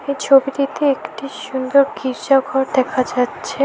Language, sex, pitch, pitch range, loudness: Bengali, female, 270 Hz, 260-280 Hz, -17 LUFS